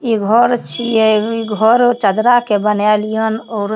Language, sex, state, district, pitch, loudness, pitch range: Maithili, female, Bihar, Supaul, 220 Hz, -14 LUFS, 210-235 Hz